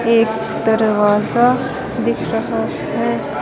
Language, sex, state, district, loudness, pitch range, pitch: Hindi, female, Himachal Pradesh, Shimla, -17 LUFS, 220-240 Hz, 225 Hz